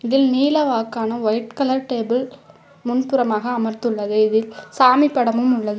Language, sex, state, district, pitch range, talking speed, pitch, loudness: Tamil, female, Tamil Nadu, Namakkal, 220-260 Hz, 115 wpm, 240 Hz, -19 LUFS